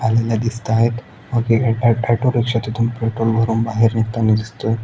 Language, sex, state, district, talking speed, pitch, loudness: Marathi, male, Maharashtra, Aurangabad, 175 wpm, 115 Hz, -18 LUFS